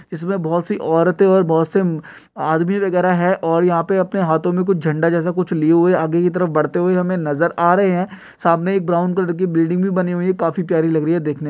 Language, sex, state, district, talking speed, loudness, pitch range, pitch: Hindi, male, Bihar, Kishanganj, 245 wpm, -17 LUFS, 165-185 Hz, 175 Hz